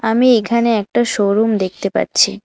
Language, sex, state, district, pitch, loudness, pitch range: Bengali, female, West Bengal, Alipurduar, 220 Hz, -15 LUFS, 200-235 Hz